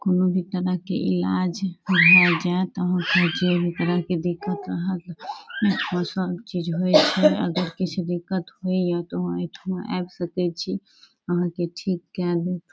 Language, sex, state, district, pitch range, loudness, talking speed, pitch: Maithili, female, Bihar, Saharsa, 175-185 Hz, -23 LUFS, 125 wpm, 180 Hz